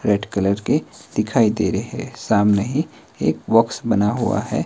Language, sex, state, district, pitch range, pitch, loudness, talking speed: Hindi, male, Himachal Pradesh, Shimla, 100-115 Hz, 105 Hz, -20 LUFS, 180 wpm